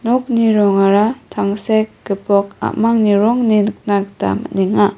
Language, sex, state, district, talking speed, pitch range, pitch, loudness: Garo, female, Meghalaya, West Garo Hills, 120 wpm, 200-220 Hz, 205 Hz, -15 LUFS